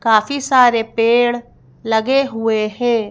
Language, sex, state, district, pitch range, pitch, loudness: Hindi, female, Madhya Pradesh, Bhopal, 225-250 Hz, 235 Hz, -16 LUFS